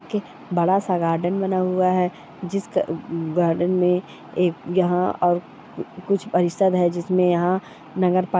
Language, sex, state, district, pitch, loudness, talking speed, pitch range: Hindi, female, Chhattisgarh, Raigarh, 180 Hz, -22 LUFS, 150 wpm, 175-185 Hz